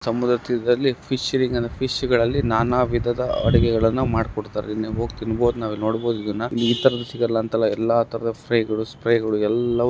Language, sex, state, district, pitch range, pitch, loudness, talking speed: Kannada, male, Karnataka, Gulbarga, 115-120 Hz, 115 Hz, -22 LUFS, 155 wpm